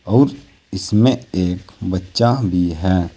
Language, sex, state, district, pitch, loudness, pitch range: Hindi, male, Uttar Pradesh, Saharanpur, 95 Hz, -18 LUFS, 90-120 Hz